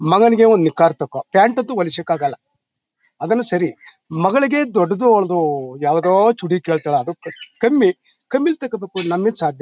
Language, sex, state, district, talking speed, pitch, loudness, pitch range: Kannada, male, Karnataka, Mysore, 135 wpm, 185 Hz, -17 LUFS, 165-230 Hz